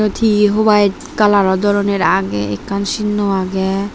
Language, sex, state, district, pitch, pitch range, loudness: Chakma, female, Tripura, Dhalai, 200 Hz, 190-210 Hz, -15 LUFS